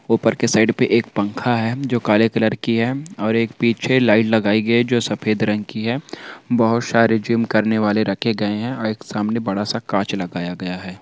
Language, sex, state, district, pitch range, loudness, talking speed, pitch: Hindi, male, Chhattisgarh, Jashpur, 105-115 Hz, -19 LUFS, 225 wpm, 110 Hz